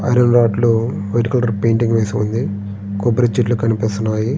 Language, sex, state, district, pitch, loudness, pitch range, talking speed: Telugu, male, Andhra Pradesh, Srikakulam, 115 Hz, -17 LUFS, 105-120 Hz, 95 wpm